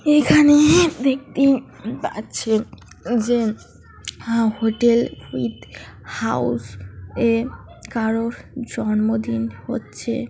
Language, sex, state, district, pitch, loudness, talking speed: Bengali, female, West Bengal, Jhargram, 225 Hz, -20 LUFS, 85 wpm